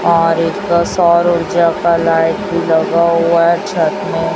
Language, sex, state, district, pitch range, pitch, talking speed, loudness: Hindi, female, Chhattisgarh, Raipur, 165-170 Hz, 170 Hz, 150 wpm, -13 LUFS